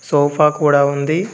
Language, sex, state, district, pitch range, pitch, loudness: Telugu, male, Telangana, Komaram Bheem, 145-155 Hz, 150 Hz, -15 LUFS